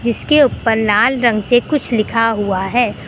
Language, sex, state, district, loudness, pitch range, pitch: Hindi, female, Uttar Pradesh, Lucknow, -14 LUFS, 215-250 Hz, 235 Hz